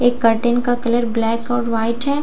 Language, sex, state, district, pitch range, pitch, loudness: Hindi, female, Bihar, Katihar, 230-245 Hz, 240 Hz, -18 LUFS